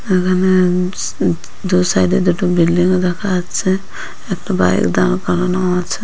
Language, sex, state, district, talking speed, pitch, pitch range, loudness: Bengali, female, West Bengal, Purulia, 170 wpm, 180 Hz, 175-185 Hz, -16 LUFS